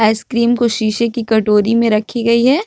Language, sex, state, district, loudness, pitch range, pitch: Hindi, female, Jharkhand, Garhwa, -14 LUFS, 220-235 Hz, 230 Hz